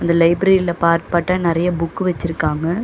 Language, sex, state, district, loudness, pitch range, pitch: Tamil, female, Tamil Nadu, Chennai, -17 LUFS, 170-180 Hz, 170 Hz